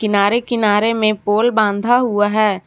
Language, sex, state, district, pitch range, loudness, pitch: Hindi, female, Jharkhand, Garhwa, 205-230 Hz, -15 LUFS, 215 Hz